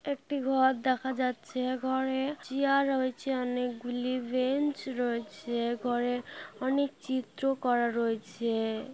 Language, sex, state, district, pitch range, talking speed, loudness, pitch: Bengali, female, West Bengal, North 24 Parganas, 240-270 Hz, 100 wpm, -31 LUFS, 255 Hz